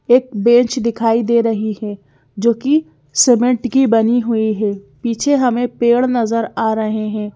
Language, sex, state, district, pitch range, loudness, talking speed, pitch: Hindi, female, Madhya Pradesh, Bhopal, 215-245 Hz, -16 LUFS, 165 wpm, 230 Hz